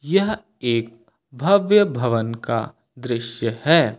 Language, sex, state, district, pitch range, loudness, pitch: Hindi, male, Uttar Pradesh, Lucknow, 115-165 Hz, -21 LUFS, 125 Hz